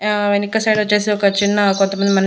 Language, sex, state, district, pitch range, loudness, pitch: Telugu, female, Andhra Pradesh, Annamaya, 200-210 Hz, -16 LUFS, 205 Hz